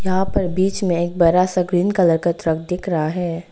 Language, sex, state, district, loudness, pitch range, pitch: Hindi, female, Arunachal Pradesh, Lower Dibang Valley, -19 LUFS, 170-185 Hz, 180 Hz